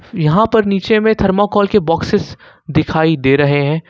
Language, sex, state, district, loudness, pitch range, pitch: Hindi, male, Jharkhand, Ranchi, -14 LUFS, 155-210 Hz, 170 Hz